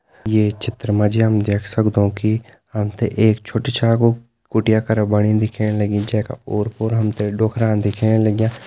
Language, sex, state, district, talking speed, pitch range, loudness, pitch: Hindi, male, Uttarakhand, Tehri Garhwal, 180 wpm, 105-115 Hz, -18 LUFS, 110 Hz